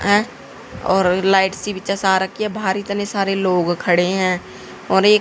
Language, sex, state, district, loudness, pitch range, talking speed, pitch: Hindi, female, Haryana, Jhajjar, -18 LUFS, 185-205 Hz, 185 wpm, 190 Hz